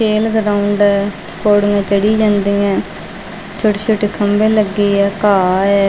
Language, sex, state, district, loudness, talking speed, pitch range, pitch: Punjabi, female, Punjab, Fazilka, -14 LUFS, 130 wpm, 200-210 Hz, 205 Hz